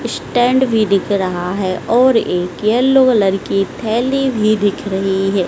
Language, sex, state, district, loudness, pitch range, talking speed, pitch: Hindi, female, Madhya Pradesh, Dhar, -15 LUFS, 190-245 Hz, 165 wpm, 205 Hz